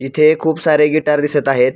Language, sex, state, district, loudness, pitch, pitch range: Marathi, male, Maharashtra, Pune, -14 LUFS, 150 Hz, 135-155 Hz